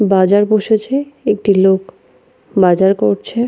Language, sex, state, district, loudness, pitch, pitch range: Bengali, female, West Bengal, Paschim Medinipur, -14 LUFS, 200 Hz, 190-215 Hz